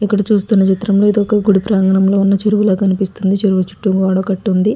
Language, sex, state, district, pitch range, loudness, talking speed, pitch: Telugu, female, Andhra Pradesh, Guntur, 190-205 Hz, -14 LUFS, 190 wpm, 195 Hz